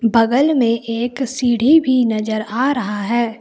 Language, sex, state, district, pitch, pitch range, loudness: Hindi, female, Jharkhand, Palamu, 235 Hz, 230-260 Hz, -17 LUFS